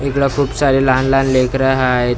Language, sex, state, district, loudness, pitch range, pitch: Marathi, male, Maharashtra, Mumbai Suburban, -14 LUFS, 130-140 Hz, 135 Hz